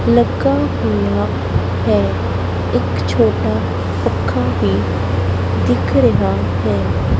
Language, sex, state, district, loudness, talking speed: Punjabi, female, Punjab, Kapurthala, -16 LUFS, 85 wpm